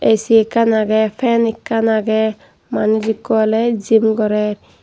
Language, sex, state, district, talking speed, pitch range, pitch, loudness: Chakma, female, Tripura, Dhalai, 135 wpm, 215-225 Hz, 220 Hz, -16 LUFS